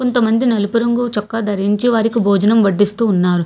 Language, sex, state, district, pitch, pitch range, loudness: Telugu, female, Telangana, Hyderabad, 225 Hz, 205-230 Hz, -15 LUFS